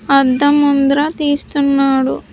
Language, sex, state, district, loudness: Telugu, female, Andhra Pradesh, Sri Satya Sai, -13 LUFS